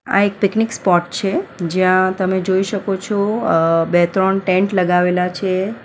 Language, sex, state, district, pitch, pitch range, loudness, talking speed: Gujarati, female, Gujarat, Valsad, 190 Hz, 180-200 Hz, -17 LUFS, 155 wpm